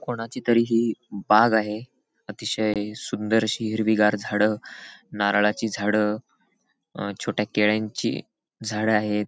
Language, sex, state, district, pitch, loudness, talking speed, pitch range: Marathi, male, Maharashtra, Sindhudurg, 105 Hz, -24 LUFS, 115 wpm, 105-110 Hz